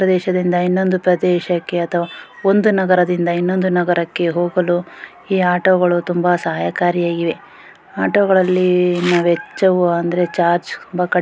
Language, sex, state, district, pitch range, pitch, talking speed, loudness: Kannada, female, Karnataka, Gulbarga, 175-185 Hz, 180 Hz, 100 wpm, -16 LUFS